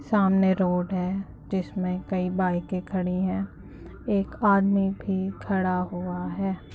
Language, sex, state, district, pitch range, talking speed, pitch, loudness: Hindi, female, Uttar Pradesh, Jyotiba Phule Nagar, 180-195 Hz, 135 wpm, 190 Hz, -26 LUFS